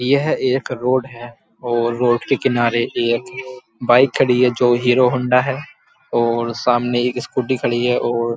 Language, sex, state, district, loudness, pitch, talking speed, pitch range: Hindi, male, Uttar Pradesh, Muzaffarnagar, -17 LUFS, 125 Hz, 170 wpm, 120-130 Hz